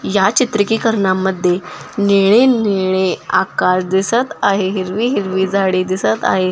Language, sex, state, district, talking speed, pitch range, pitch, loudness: Marathi, female, Maharashtra, Nagpur, 90 wpm, 185-210 Hz, 195 Hz, -15 LUFS